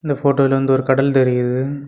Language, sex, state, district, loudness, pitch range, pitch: Tamil, male, Tamil Nadu, Kanyakumari, -16 LUFS, 130-140 Hz, 135 Hz